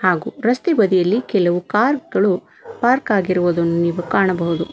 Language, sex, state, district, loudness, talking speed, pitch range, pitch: Kannada, female, Karnataka, Bangalore, -18 LUFS, 125 wpm, 175-235 Hz, 190 Hz